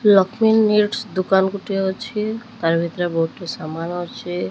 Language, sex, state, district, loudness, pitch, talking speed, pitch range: Odia, female, Odisha, Sambalpur, -20 LUFS, 190 Hz, 145 wpm, 175-210 Hz